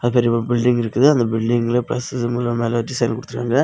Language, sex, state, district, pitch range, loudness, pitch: Tamil, male, Tamil Nadu, Kanyakumari, 115-125 Hz, -19 LUFS, 120 Hz